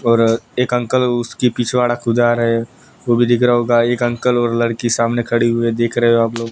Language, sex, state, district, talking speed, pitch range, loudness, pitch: Hindi, male, Gujarat, Gandhinagar, 220 wpm, 115-120 Hz, -16 LUFS, 120 Hz